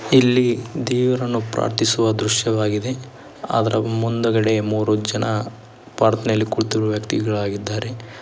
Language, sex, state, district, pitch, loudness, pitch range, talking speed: Kannada, male, Karnataka, Koppal, 110 Hz, -20 LUFS, 110-120 Hz, 80 wpm